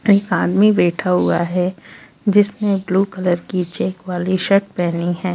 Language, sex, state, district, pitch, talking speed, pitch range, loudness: Hindi, male, Bihar, Lakhisarai, 185 Hz, 170 wpm, 180-200 Hz, -18 LUFS